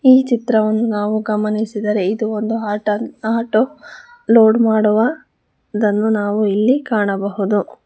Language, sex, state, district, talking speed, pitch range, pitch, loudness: Kannada, female, Karnataka, Bangalore, 115 wpm, 210-230 Hz, 215 Hz, -17 LUFS